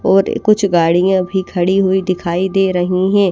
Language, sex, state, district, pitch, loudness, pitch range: Hindi, female, Bihar, Katihar, 190 Hz, -14 LUFS, 180-195 Hz